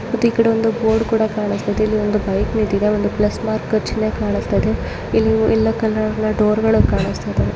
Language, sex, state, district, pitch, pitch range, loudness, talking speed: Kannada, female, Karnataka, Mysore, 215 Hz, 205-220 Hz, -18 LUFS, 175 wpm